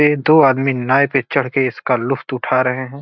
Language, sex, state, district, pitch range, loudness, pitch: Hindi, male, Bihar, Gopalganj, 130-140 Hz, -16 LUFS, 135 Hz